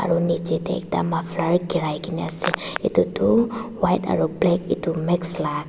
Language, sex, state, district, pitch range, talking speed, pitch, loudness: Nagamese, female, Nagaland, Dimapur, 170-190 Hz, 170 wpm, 175 Hz, -23 LUFS